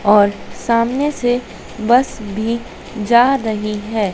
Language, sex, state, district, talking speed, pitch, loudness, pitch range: Hindi, female, Madhya Pradesh, Dhar, 115 wpm, 230 Hz, -17 LUFS, 210-245 Hz